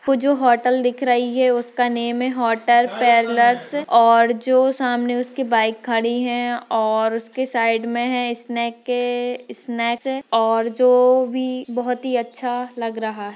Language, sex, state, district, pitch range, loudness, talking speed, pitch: Hindi, female, Maharashtra, Aurangabad, 235-250 Hz, -19 LUFS, 160 wpm, 245 Hz